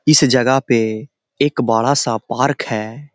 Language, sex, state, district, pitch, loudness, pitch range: Hindi, male, Bihar, Jahanabad, 130 Hz, -16 LUFS, 115-140 Hz